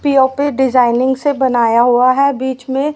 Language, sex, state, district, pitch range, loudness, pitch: Hindi, female, Haryana, Rohtak, 250-280 Hz, -13 LUFS, 260 Hz